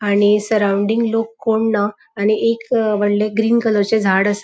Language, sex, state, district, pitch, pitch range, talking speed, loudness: Konkani, female, Goa, North and South Goa, 215 Hz, 205-225 Hz, 175 wpm, -17 LUFS